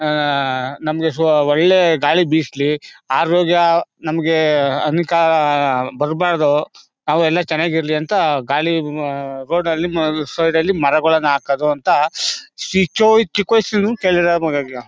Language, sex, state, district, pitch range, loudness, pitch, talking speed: Kannada, male, Karnataka, Mysore, 145-170 Hz, -16 LUFS, 160 Hz, 80 wpm